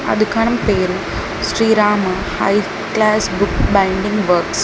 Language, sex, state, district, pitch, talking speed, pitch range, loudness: Telugu, female, Telangana, Mahabubabad, 205 Hz, 130 wpm, 190-215 Hz, -16 LUFS